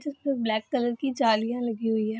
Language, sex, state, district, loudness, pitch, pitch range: Hindi, female, Bihar, Saharsa, -27 LUFS, 235 Hz, 220-270 Hz